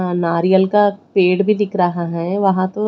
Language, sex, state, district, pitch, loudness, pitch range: Hindi, female, Odisha, Khordha, 190 Hz, -16 LUFS, 180-205 Hz